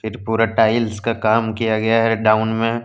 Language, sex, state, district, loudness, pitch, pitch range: Hindi, male, Jharkhand, Deoghar, -18 LUFS, 115 Hz, 110-115 Hz